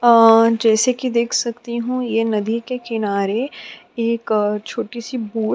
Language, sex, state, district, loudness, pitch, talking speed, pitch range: Hindi, female, Chhattisgarh, Sukma, -19 LUFS, 230 Hz, 160 wpm, 220-240 Hz